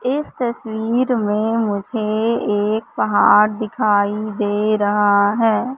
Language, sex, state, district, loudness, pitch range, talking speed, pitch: Hindi, female, Madhya Pradesh, Katni, -18 LUFS, 210-230 Hz, 105 wpm, 215 Hz